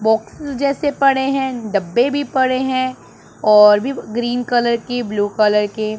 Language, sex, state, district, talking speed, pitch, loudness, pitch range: Hindi, male, Punjab, Pathankot, 160 wpm, 245 Hz, -17 LUFS, 215-270 Hz